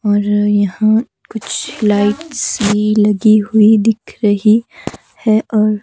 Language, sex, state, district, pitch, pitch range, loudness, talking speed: Hindi, female, Himachal Pradesh, Shimla, 215 Hz, 205-220 Hz, -13 LUFS, 115 wpm